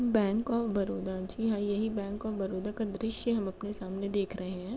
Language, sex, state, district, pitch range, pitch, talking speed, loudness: Hindi, female, Uttar Pradesh, Jalaun, 195-220 Hz, 205 Hz, 215 wpm, -33 LUFS